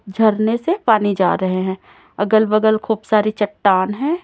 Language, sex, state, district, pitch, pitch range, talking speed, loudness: Hindi, female, Chhattisgarh, Raipur, 215 Hz, 200-220 Hz, 170 wpm, -17 LUFS